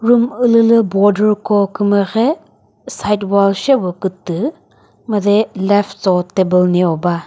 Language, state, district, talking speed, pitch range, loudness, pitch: Chakhesang, Nagaland, Dimapur, 125 wpm, 190-225 Hz, -14 LUFS, 205 Hz